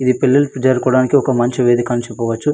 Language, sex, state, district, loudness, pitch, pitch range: Telugu, male, Andhra Pradesh, Anantapur, -15 LUFS, 130 Hz, 120-130 Hz